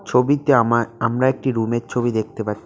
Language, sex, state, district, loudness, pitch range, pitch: Bengali, male, West Bengal, Cooch Behar, -19 LUFS, 115-130 Hz, 120 Hz